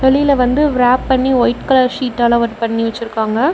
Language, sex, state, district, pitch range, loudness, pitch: Tamil, female, Tamil Nadu, Namakkal, 235-265 Hz, -14 LUFS, 250 Hz